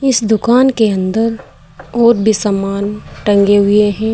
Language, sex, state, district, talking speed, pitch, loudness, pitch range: Hindi, female, Uttar Pradesh, Saharanpur, 145 wpm, 210 Hz, -13 LUFS, 200-225 Hz